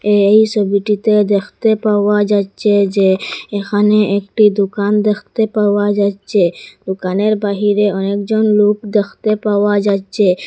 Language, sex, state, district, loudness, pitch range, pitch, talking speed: Bengali, female, Assam, Hailakandi, -14 LUFS, 200-210 Hz, 205 Hz, 110 wpm